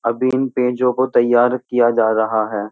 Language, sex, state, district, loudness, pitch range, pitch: Hindi, male, Uttar Pradesh, Jyotiba Phule Nagar, -17 LUFS, 110-125 Hz, 120 Hz